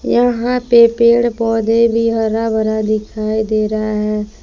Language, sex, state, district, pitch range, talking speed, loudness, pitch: Hindi, female, Jharkhand, Palamu, 215-235 Hz, 150 wpm, -14 LUFS, 225 Hz